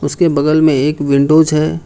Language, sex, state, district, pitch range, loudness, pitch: Hindi, male, Jharkhand, Ranchi, 145-155 Hz, -12 LUFS, 155 Hz